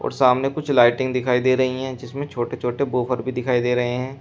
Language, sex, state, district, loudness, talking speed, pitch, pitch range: Hindi, male, Uttar Pradesh, Shamli, -21 LUFS, 225 wpm, 125 Hz, 125-130 Hz